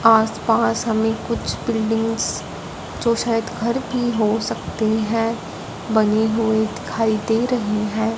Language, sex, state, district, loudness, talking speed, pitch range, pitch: Hindi, female, Punjab, Fazilka, -20 LUFS, 125 wpm, 220-230 Hz, 225 Hz